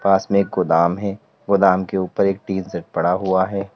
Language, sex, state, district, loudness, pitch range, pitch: Hindi, male, Uttar Pradesh, Lalitpur, -19 LUFS, 90-100 Hz, 95 Hz